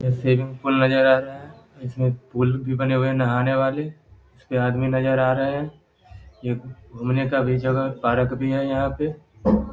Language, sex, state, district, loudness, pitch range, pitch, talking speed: Hindi, male, Bihar, Samastipur, -22 LUFS, 125-135 Hz, 130 Hz, 205 wpm